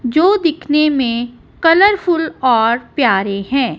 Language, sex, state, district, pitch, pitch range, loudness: Hindi, female, Punjab, Kapurthala, 275 Hz, 240-330 Hz, -14 LUFS